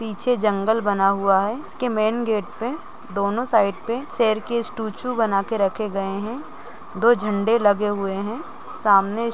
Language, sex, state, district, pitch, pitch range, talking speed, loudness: Hindi, female, Chhattisgarh, Rajnandgaon, 215 Hz, 200-235 Hz, 165 wpm, -21 LUFS